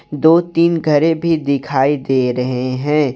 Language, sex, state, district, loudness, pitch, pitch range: Hindi, male, Jharkhand, Garhwa, -15 LUFS, 145 Hz, 130-165 Hz